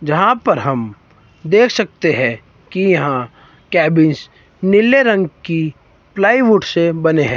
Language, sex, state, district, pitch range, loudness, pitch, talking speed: Hindi, male, Himachal Pradesh, Shimla, 145-200 Hz, -14 LUFS, 165 Hz, 130 wpm